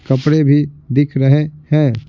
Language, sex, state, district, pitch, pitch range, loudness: Hindi, male, Bihar, Patna, 145 Hz, 135-150 Hz, -14 LUFS